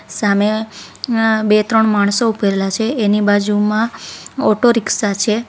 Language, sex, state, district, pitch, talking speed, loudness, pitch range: Gujarati, female, Gujarat, Valsad, 215 Hz, 110 wpm, -15 LUFS, 205-225 Hz